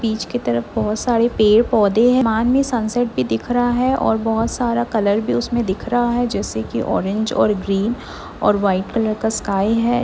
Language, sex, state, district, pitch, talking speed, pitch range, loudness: Hindi, female, Chhattisgarh, Bilaspur, 225 Hz, 205 wpm, 205-240 Hz, -18 LUFS